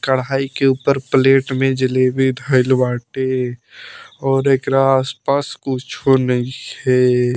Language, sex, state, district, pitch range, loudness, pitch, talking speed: Bhojpuri, male, Bihar, Muzaffarpur, 130-135 Hz, -17 LUFS, 130 Hz, 105 wpm